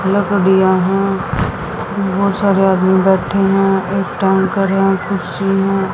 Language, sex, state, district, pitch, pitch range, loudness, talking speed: Hindi, female, Haryana, Jhajjar, 195 Hz, 190-195 Hz, -15 LUFS, 100 wpm